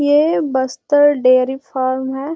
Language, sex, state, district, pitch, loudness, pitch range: Hindi, female, Bihar, Gopalganj, 270 Hz, -15 LUFS, 260-290 Hz